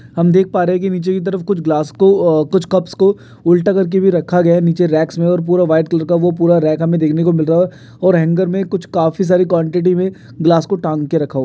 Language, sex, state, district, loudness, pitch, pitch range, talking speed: Hindi, male, Andhra Pradesh, Chittoor, -14 LUFS, 175 Hz, 165-185 Hz, 255 wpm